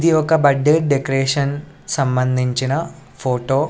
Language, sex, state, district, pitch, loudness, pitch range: Telugu, male, Andhra Pradesh, Sri Satya Sai, 140 Hz, -18 LUFS, 130-150 Hz